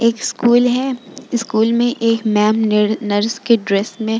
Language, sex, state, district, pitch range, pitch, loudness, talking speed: Hindi, female, Bihar, Vaishali, 215-240 Hz, 225 Hz, -16 LUFS, 200 wpm